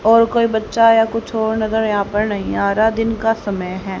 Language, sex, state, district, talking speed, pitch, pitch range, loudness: Hindi, female, Haryana, Charkhi Dadri, 240 wpm, 220 Hz, 205-225 Hz, -17 LUFS